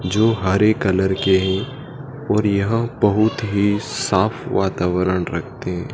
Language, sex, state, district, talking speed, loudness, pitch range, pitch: Hindi, male, Madhya Pradesh, Dhar, 120 wpm, -19 LUFS, 95-110 Hz, 100 Hz